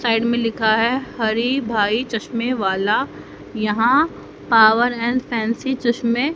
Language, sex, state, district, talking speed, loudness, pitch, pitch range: Hindi, female, Haryana, Rohtak, 125 wpm, -19 LUFS, 230 Hz, 220-250 Hz